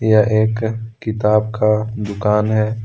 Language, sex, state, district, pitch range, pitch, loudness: Hindi, male, Jharkhand, Deoghar, 105-110 Hz, 110 Hz, -17 LUFS